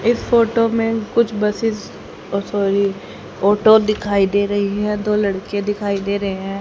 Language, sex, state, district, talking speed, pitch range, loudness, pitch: Hindi, female, Haryana, Rohtak, 165 wpm, 200-220 Hz, -18 LUFS, 205 Hz